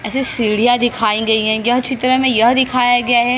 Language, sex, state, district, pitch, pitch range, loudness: Hindi, female, Maharashtra, Mumbai Suburban, 245 Hz, 225-250 Hz, -14 LUFS